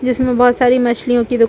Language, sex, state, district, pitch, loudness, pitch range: Hindi, female, Chhattisgarh, Bilaspur, 245 Hz, -14 LUFS, 240-250 Hz